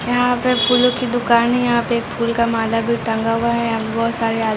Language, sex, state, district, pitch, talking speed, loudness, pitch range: Hindi, female, Bihar, Sitamarhi, 235 Hz, 260 wpm, -17 LUFS, 230-245 Hz